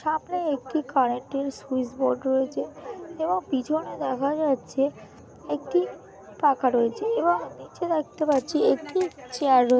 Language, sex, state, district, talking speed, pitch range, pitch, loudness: Bengali, female, West Bengal, Kolkata, 115 wpm, 260-320 Hz, 285 Hz, -26 LUFS